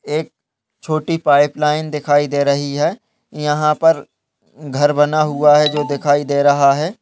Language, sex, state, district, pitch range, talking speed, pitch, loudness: Hindi, male, West Bengal, Dakshin Dinajpur, 145-155 Hz, 160 wpm, 150 Hz, -16 LUFS